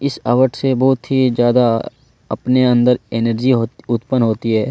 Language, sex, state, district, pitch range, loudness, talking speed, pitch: Hindi, male, Chhattisgarh, Kabirdham, 115-130 Hz, -16 LUFS, 165 wpm, 125 Hz